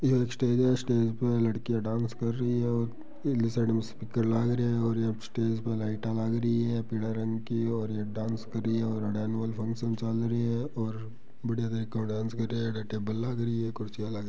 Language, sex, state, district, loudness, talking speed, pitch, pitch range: Marwari, male, Rajasthan, Churu, -30 LUFS, 240 wpm, 115 Hz, 110-115 Hz